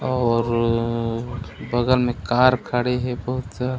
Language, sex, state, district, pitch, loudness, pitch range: Chhattisgarhi, male, Chhattisgarh, Raigarh, 120 Hz, -22 LUFS, 115-125 Hz